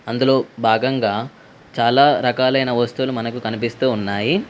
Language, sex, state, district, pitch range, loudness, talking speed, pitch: Telugu, female, Telangana, Mahabubabad, 115-130 Hz, -18 LUFS, 105 wpm, 125 Hz